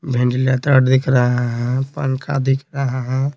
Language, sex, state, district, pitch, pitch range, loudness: Hindi, male, Bihar, Patna, 130 Hz, 125-135 Hz, -18 LUFS